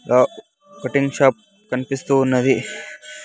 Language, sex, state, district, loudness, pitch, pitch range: Telugu, male, Andhra Pradesh, Sri Satya Sai, -19 LUFS, 135 Hz, 130-195 Hz